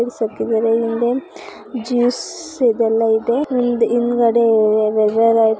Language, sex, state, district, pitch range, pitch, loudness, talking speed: Kannada, female, Karnataka, Chamarajanagar, 225-245 Hz, 230 Hz, -16 LUFS, 65 wpm